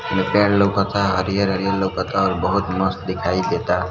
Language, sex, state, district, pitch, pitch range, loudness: Hindi, male, Bihar, Sitamarhi, 95 Hz, 95-100 Hz, -19 LUFS